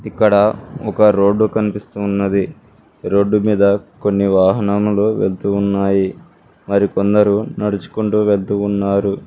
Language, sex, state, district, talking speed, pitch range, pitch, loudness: Telugu, male, Telangana, Mahabubabad, 70 wpm, 100-105 Hz, 100 Hz, -16 LUFS